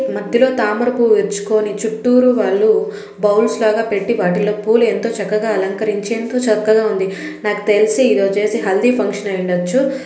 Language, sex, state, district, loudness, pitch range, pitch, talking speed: Telugu, female, Telangana, Karimnagar, -16 LUFS, 205-240 Hz, 215 Hz, 135 wpm